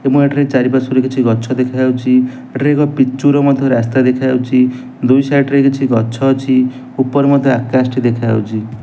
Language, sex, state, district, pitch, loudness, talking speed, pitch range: Odia, male, Odisha, Nuapada, 130 Hz, -13 LUFS, 175 wpm, 125-135 Hz